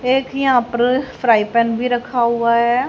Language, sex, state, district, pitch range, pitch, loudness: Hindi, female, Haryana, Charkhi Dadri, 235-255 Hz, 245 Hz, -17 LUFS